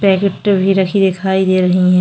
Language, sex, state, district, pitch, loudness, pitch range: Hindi, female, Chhattisgarh, Korba, 190 Hz, -13 LUFS, 185-195 Hz